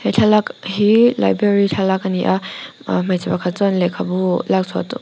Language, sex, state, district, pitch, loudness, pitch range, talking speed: Mizo, female, Mizoram, Aizawl, 190 Hz, -17 LUFS, 185-205 Hz, 180 wpm